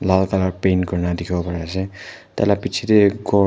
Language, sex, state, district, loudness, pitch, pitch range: Nagamese, male, Nagaland, Kohima, -19 LUFS, 95 Hz, 90-100 Hz